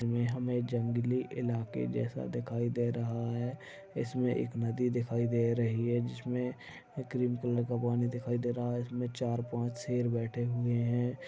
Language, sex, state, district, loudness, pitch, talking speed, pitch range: Hindi, male, Maharashtra, Chandrapur, -34 LUFS, 120 Hz, 165 wpm, 120-125 Hz